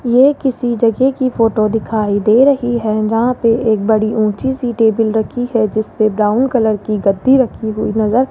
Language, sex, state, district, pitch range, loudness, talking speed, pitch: Hindi, female, Rajasthan, Jaipur, 215-245 Hz, -14 LUFS, 195 wpm, 225 Hz